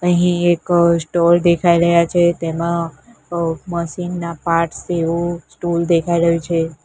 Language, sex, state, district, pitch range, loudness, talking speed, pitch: Gujarati, female, Gujarat, Gandhinagar, 170-175 Hz, -17 LUFS, 150 wpm, 170 Hz